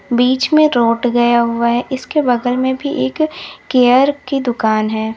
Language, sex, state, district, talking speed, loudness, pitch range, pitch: Hindi, female, Uttar Pradesh, Lalitpur, 175 wpm, -15 LUFS, 235-265 Hz, 245 Hz